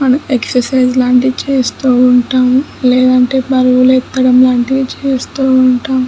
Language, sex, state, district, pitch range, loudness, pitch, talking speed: Telugu, female, Andhra Pradesh, Chittoor, 250-260 Hz, -11 LUFS, 255 Hz, 110 wpm